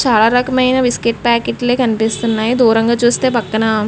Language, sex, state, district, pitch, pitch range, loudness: Telugu, female, Andhra Pradesh, Krishna, 235 Hz, 225-245 Hz, -14 LUFS